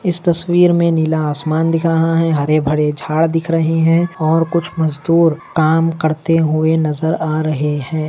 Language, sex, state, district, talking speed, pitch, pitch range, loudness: Hindi, male, Maharashtra, Dhule, 180 wpm, 160 Hz, 155-165 Hz, -15 LUFS